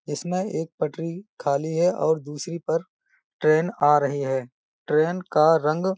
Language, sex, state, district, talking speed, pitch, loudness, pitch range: Hindi, male, Uttar Pradesh, Budaun, 160 wpm, 160 Hz, -23 LUFS, 150-175 Hz